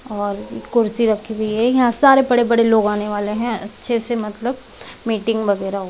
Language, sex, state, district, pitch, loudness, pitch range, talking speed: Hindi, female, Uttar Pradesh, Budaun, 225 Hz, -18 LUFS, 210-240 Hz, 205 wpm